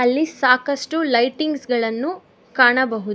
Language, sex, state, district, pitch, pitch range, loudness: Kannada, female, Karnataka, Bangalore, 260 Hz, 245-310 Hz, -19 LUFS